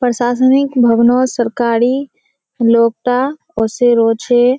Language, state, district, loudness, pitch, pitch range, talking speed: Surjapuri, Bihar, Kishanganj, -13 LUFS, 245 Hz, 230-255 Hz, 90 wpm